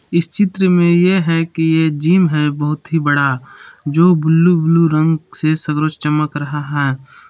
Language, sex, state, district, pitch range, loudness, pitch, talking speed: Hindi, male, Jharkhand, Palamu, 150-170 Hz, -14 LUFS, 160 Hz, 170 wpm